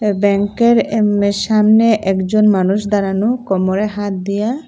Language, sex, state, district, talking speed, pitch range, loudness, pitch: Bengali, female, Assam, Hailakandi, 130 wpm, 200-215 Hz, -15 LUFS, 205 Hz